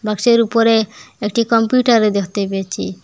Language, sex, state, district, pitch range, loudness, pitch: Bengali, female, Assam, Hailakandi, 200-230 Hz, -16 LUFS, 215 Hz